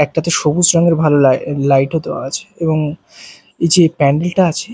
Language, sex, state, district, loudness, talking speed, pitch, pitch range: Bengali, male, Bihar, Katihar, -14 LUFS, 175 wpm, 160 Hz, 145-170 Hz